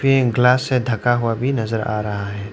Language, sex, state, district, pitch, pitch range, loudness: Hindi, male, Arunachal Pradesh, Lower Dibang Valley, 120 Hz, 105-125 Hz, -19 LUFS